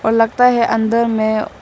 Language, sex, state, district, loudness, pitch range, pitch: Hindi, female, Arunachal Pradesh, Lower Dibang Valley, -15 LUFS, 220-235 Hz, 225 Hz